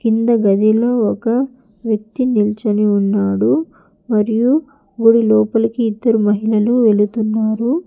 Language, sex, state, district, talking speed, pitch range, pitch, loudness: Telugu, female, Telangana, Hyderabad, 90 wpm, 210-235 Hz, 225 Hz, -15 LUFS